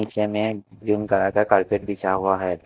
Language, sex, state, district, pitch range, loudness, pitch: Hindi, male, Maharashtra, Washim, 95-105 Hz, -22 LUFS, 100 Hz